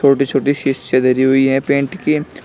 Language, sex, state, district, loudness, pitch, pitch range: Hindi, male, Uttar Pradesh, Shamli, -15 LUFS, 135 Hz, 135-140 Hz